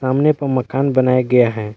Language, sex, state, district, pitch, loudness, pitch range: Hindi, male, Jharkhand, Palamu, 130 Hz, -16 LUFS, 125-135 Hz